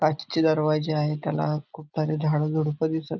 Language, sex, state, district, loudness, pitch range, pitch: Marathi, male, Maharashtra, Aurangabad, -25 LUFS, 150-155 Hz, 155 Hz